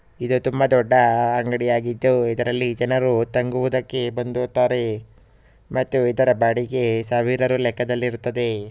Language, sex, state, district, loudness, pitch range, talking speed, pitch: Kannada, male, Karnataka, Shimoga, -21 LUFS, 120-125 Hz, 75 wpm, 120 Hz